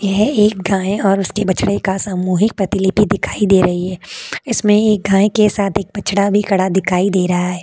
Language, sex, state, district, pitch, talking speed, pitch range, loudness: Hindi, female, Uttar Pradesh, Jalaun, 195 Hz, 205 wpm, 190-205 Hz, -15 LUFS